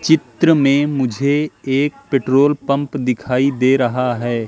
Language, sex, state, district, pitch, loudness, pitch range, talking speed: Hindi, male, Madhya Pradesh, Katni, 135 Hz, -16 LUFS, 125-145 Hz, 135 wpm